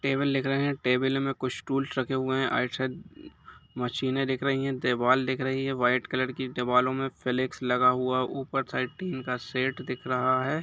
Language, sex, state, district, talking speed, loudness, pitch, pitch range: Hindi, male, Jharkhand, Jamtara, 210 wpm, -28 LUFS, 130 Hz, 125-135 Hz